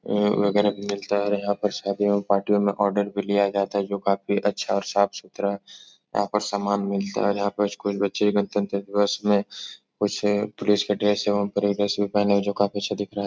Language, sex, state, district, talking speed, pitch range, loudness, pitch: Hindi, male, Uttar Pradesh, Etah, 220 wpm, 100-105 Hz, -24 LUFS, 100 Hz